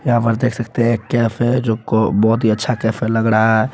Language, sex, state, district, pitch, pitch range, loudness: Hindi, male, Bihar, Araria, 115 Hz, 110-120 Hz, -16 LUFS